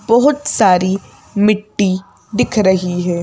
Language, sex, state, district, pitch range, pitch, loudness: Hindi, female, Madhya Pradesh, Bhopal, 185-220 Hz, 200 Hz, -15 LUFS